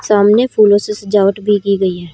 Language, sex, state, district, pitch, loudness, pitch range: Hindi, female, Haryana, Rohtak, 205 Hz, -13 LUFS, 195-210 Hz